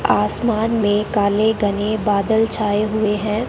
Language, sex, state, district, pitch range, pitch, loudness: Hindi, female, Rajasthan, Bikaner, 205-220 Hz, 215 Hz, -18 LUFS